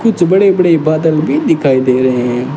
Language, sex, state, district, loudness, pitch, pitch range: Hindi, male, Rajasthan, Bikaner, -11 LUFS, 155 Hz, 130-175 Hz